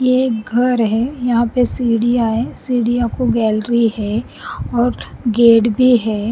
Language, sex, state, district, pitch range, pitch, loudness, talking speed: Hindi, female, Punjab, Pathankot, 225-245 Hz, 235 Hz, -16 LUFS, 150 wpm